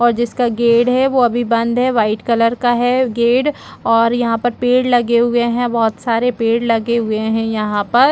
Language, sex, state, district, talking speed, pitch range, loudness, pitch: Hindi, female, Chhattisgarh, Bastar, 215 wpm, 230-245 Hz, -15 LUFS, 235 Hz